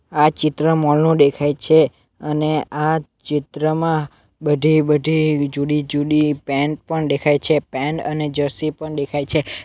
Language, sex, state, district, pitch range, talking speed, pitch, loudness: Gujarati, male, Gujarat, Navsari, 145-155 Hz, 145 wpm, 150 Hz, -18 LUFS